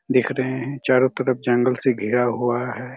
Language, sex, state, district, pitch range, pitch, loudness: Hindi, male, Chhattisgarh, Raigarh, 120-130 Hz, 125 Hz, -21 LUFS